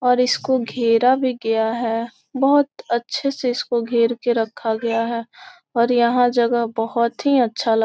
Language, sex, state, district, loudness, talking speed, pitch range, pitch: Hindi, female, Bihar, Gopalganj, -20 LUFS, 175 wpm, 230-255 Hz, 235 Hz